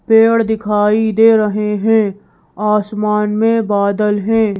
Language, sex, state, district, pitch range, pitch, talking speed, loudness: Hindi, female, Madhya Pradesh, Bhopal, 210-225 Hz, 210 Hz, 130 wpm, -14 LUFS